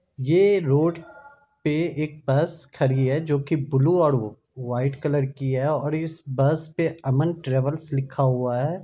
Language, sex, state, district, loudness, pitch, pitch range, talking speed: Hindi, male, Bihar, Madhepura, -23 LUFS, 145 Hz, 135-165 Hz, 165 wpm